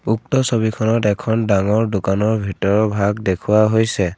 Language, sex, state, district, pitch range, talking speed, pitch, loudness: Assamese, male, Assam, Kamrup Metropolitan, 100-110 Hz, 130 wpm, 110 Hz, -17 LUFS